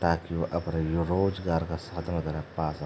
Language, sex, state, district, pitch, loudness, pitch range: Garhwali, male, Uttarakhand, Tehri Garhwal, 85 Hz, -30 LUFS, 80-85 Hz